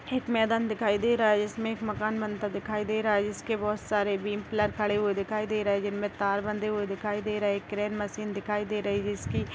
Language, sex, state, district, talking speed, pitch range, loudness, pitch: Hindi, female, Chhattisgarh, Raigarh, 250 wpm, 205-215 Hz, -29 LUFS, 210 Hz